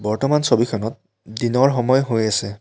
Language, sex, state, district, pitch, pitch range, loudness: Assamese, male, Assam, Kamrup Metropolitan, 115 Hz, 110-130 Hz, -19 LUFS